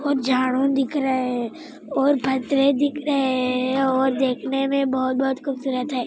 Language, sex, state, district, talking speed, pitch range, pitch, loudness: Hindi, female, Andhra Pradesh, Anantapur, 160 wpm, 260-275 Hz, 265 Hz, -22 LUFS